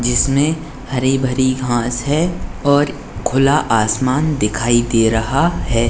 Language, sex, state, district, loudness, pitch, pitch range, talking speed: Hindi, male, Maharashtra, Dhule, -16 LUFS, 130 Hz, 120-145 Hz, 110 wpm